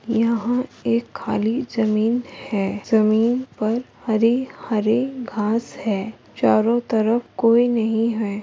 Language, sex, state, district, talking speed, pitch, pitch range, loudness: Hindi, female, Jharkhand, Sahebganj, 120 wpm, 230 Hz, 215-240 Hz, -21 LUFS